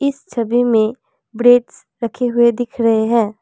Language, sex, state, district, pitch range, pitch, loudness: Hindi, female, Assam, Kamrup Metropolitan, 230-245 Hz, 235 Hz, -16 LUFS